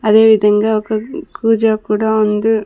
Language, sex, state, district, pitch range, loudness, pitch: Telugu, female, Andhra Pradesh, Sri Satya Sai, 215-220 Hz, -14 LUFS, 220 Hz